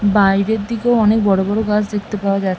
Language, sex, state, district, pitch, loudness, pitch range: Bengali, female, West Bengal, Malda, 210 Hz, -16 LUFS, 195-220 Hz